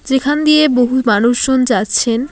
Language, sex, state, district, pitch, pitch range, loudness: Bengali, female, West Bengal, Alipurduar, 255 Hz, 240-275 Hz, -13 LUFS